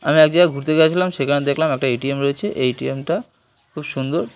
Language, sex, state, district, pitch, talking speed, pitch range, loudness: Bengali, male, West Bengal, North 24 Parganas, 145 Hz, 205 wpm, 135-160 Hz, -18 LUFS